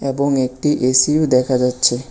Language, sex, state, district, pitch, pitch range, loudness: Bengali, male, Tripura, West Tripura, 130 Hz, 125-140 Hz, -16 LUFS